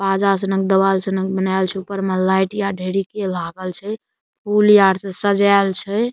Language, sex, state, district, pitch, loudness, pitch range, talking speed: Maithili, male, Bihar, Saharsa, 195 Hz, -18 LUFS, 190-200 Hz, 185 wpm